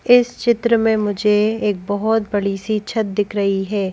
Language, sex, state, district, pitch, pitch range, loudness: Hindi, female, Madhya Pradesh, Bhopal, 210 Hz, 205-225 Hz, -18 LUFS